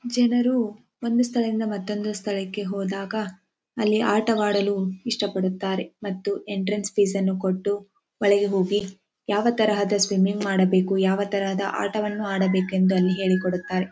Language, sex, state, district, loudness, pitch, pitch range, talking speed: Kannada, female, Karnataka, Dharwad, -24 LUFS, 200 Hz, 190-210 Hz, 120 wpm